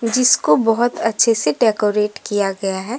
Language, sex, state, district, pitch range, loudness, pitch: Hindi, female, Jharkhand, Deoghar, 200-230 Hz, -16 LUFS, 220 Hz